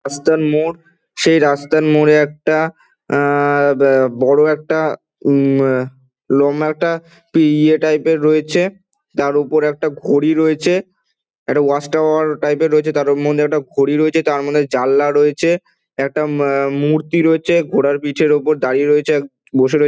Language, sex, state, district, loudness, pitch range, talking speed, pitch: Bengali, male, West Bengal, Dakshin Dinajpur, -15 LUFS, 140-155 Hz, 135 wpm, 150 Hz